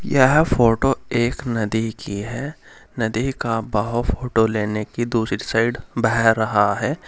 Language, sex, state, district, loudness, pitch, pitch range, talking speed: Hindi, male, Uttar Pradesh, Saharanpur, -20 LUFS, 115 Hz, 110-125 Hz, 145 wpm